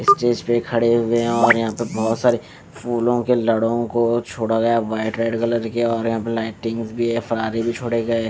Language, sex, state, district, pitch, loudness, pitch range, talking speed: Hindi, male, Bihar, West Champaran, 115 Hz, -20 LUFS, 115-120 Hz, 215 wpm